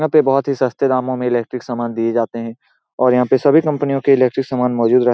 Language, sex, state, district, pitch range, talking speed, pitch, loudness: Hindi, male, Bihar, Saran, 120-135 Hz, 255 wpm, 125 Hz, -16 LUFS